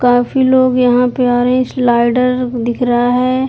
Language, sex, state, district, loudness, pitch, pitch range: Hindi, female, Uttar Pradesh, Deoria, -13 LUFS, 250 Hz, 245-255 Hz